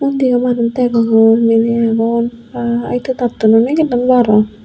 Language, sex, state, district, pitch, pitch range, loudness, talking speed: Chakma, female, Tripura, Unakoti, 235 Hz, 225-250 Hz, -13 LUFS, 165 wpm